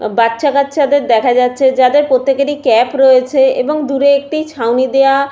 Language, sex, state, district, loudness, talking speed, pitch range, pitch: Bengali, female, West Bengal, Paschim Medinipur, -12 LUFS, 145 wpm, 250-280 Hz, 270 Hz